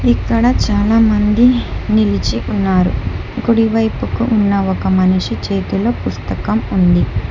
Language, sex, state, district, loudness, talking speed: Telugu, female, Telangana, Hyderabad, -15 LUFS, 100 wpm